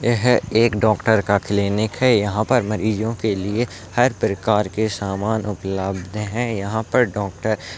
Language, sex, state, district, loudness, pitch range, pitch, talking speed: Hindi, male, Uttarakhand, Tehri Garhwal, -20 LUFS, 100-115 Hz, 110 Hz, 160 wpm